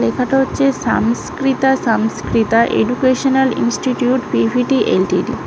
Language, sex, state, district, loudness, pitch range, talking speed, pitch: Bengali, female, West Bengal, North 24 Parganas, -15 LUFS, 230-265 Hz, 120 wpm, 255 Hz